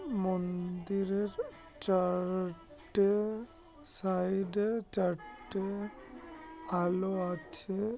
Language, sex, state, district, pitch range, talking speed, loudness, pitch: Bengali, male, West Bengal, Kolkata, 185-225 Hz, 55 wpm, -34 LUFS, 195 Hz